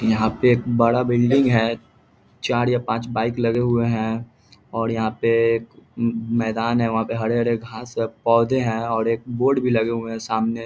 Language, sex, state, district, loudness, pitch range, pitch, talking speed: Hindi, male, Bihar, Darbhanga, -21 LUFS, 115-120 Hz, 115 Hz, 190 wpm